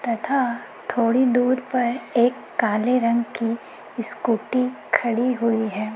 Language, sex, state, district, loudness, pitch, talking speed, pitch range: Hindi, female, Chhattisgarh, Raipur, -22 LUFS, 235 Hz, 120 wpm, 230-250 Hz